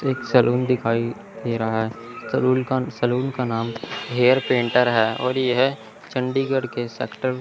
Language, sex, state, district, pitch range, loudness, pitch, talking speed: Hindi, male, Chandigarh, Chandigarh, 115-130 Hz, -22 LUFS, 125 Hz, 155 wpm